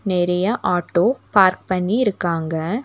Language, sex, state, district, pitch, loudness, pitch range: Tamil, female, Tamil Nadu, Nilgiris, 185 Hz, -19 LUFS, 175-210 Hz